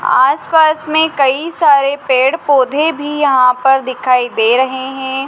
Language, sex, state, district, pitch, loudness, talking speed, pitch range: Hindi, female, Madhya Pradesh, Dhar, 270 Hz, -12 LUFS, 160 wpm, 260-300 Hz